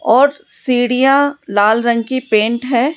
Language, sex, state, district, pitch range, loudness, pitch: Hindi, female, Rajasthan, Jaipur, 230-270 Hz, -14 LUFS, 245 Hz